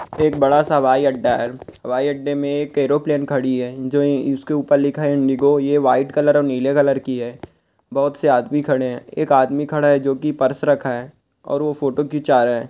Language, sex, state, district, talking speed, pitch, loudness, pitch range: Hindi, male, Bihar, Bhagalpur, 230 wpm, 140 Hz, -18 LUFS, 130-145 Hz